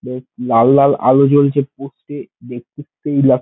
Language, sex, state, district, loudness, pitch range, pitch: Bengali, male, West Bengal, Dakshin Dinajpur, -13 LUFS, 125-140 Hz, 140 Hz